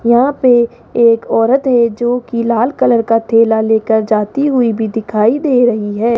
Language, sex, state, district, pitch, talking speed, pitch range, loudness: Hindi, female, Rajasthan, Jaipur, 235 Hz, 185 wpm, 225-245 Hz, -13 LUFS